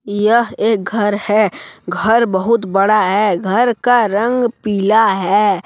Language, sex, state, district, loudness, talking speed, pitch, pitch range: Hindi, male, Jharkhand, Deoghar, -14 LUFS, 140 wpm, 210 Hz, 200-230 Hz